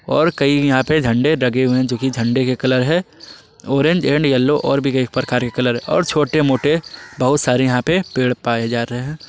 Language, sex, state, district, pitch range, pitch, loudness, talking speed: Hindi, male, Jharkhand, Palamu, 125-150 Hz, 130 Hz, -17 LUFS, 220 wpm